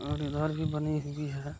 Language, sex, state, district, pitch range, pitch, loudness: Hindi, male, Bihar, Kishanganj, 145-150 Hz, 150 Hz, -33 LUFS